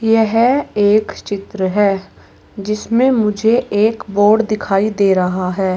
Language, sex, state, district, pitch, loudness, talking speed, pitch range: Hindi, female, Uttar Pradesh, Saharanpur, 210 Hz, -15 LUFS, 125 wpm, 195-225 Hz